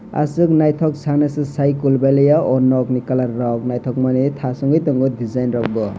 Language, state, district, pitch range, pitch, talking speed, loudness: Kokborok, Tripura, West Tripura, 125-145 Hz, 135 Hz, 180 wpm, -17 LUFS